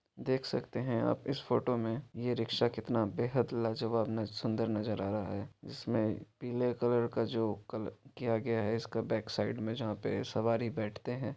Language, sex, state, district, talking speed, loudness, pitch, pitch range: Maithili, male, Bihar, Supaul, 185 wpm, -35 LUFS, 115 Hz, 110-120 Hz